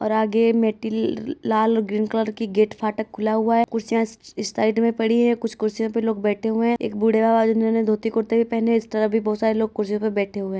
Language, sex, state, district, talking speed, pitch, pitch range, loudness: Hindi, female, Uttar Pradesh, Hamirpur, 260 wpm, 220 Hz, 215-225 Hz, -21 LUFS